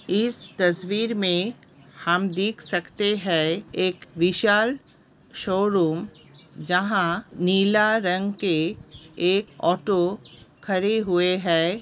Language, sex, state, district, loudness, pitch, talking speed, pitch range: Hindi, female, Uttar Pradesh, Hamirpur, -23 LUFS, 185 Hz, 90 wpm, 175-205 Hz